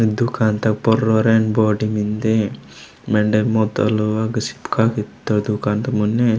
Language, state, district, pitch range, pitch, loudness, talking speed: Gondi, Chhattisgarh, Sukma, 105-110 Hz, 110 Hz, -18 LUFS, 140 wpm